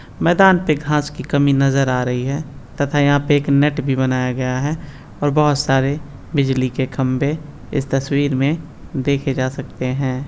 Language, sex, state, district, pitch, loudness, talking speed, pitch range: Hindi, male, Rajasthan, Nagaur, 140 Hz, -18 LUFS, 180 wpm, 130-145 Hz